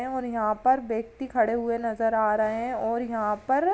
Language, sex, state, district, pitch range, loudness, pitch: Hindi, female, Uttar Pradesh, Varanasi, 225-255 Hz, -26 LUFS, 230 Hz